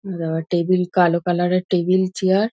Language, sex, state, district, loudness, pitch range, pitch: Bengali, female, West Bengal, North 24 Parganas, -19 LUFS, 175-185 Hz, 180 Hz